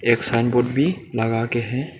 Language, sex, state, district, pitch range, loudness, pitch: Hindi, male, Arunachal Pradesh, Lower Dibang Valley, 115-125 Hz, -21 LUFS, 120 Hz